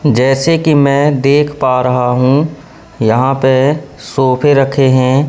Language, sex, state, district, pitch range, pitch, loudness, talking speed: Hindi, male, Madhya Pradesh, Katni, 130-145 Hz, 135 Hz, -11 LUFS, 135 wpm